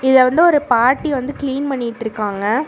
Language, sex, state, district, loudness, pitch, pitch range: Tamil, female, Tamil Nadu, Namakkal, -16 LUFS, 260 Hz, 235-280 Hz